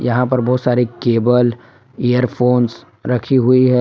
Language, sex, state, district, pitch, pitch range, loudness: Hindi, male, Jharkhand, Palamu, 125 Hz, 120-125 Hz, -15 LUFS